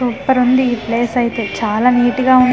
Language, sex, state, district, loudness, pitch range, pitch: Telugu, female, Andhra Pradesh, Manyam, -14 LUFS, 235-255 Hz, 245 Hz